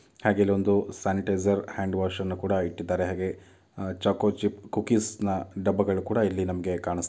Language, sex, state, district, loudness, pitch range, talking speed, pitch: Kannada, male, Karnataka, Dakshina Kannada, -27 LUFS, 95-105 Hz, 160 wpm, 95 Hz